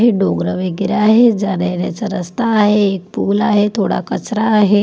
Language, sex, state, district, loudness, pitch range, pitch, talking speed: Marathi, female, Maharashtra, Pune, -15 LUFS, 185-215 Hz, 205 Hz, 160 wpm